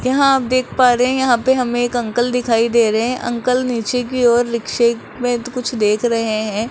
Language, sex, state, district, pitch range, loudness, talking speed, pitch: Hindi, female, Rajasthan, Jaipur, 235-250 Hz, -17 LUFS, 225 wpm, 240 Hz